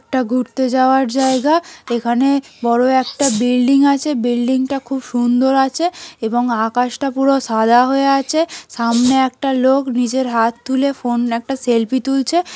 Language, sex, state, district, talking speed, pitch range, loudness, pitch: Bengali, female, West Bengal, North 24 Parganas, 155 wpm, 240-275 Hz, -16 LUFS, 260 Hz